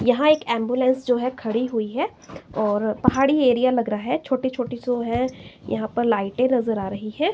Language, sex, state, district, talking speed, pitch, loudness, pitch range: Hindi, female, Himachal Pradesh, Shimla, 205 wpm, 245 Hz, -22 LUFS, 220-260 Hz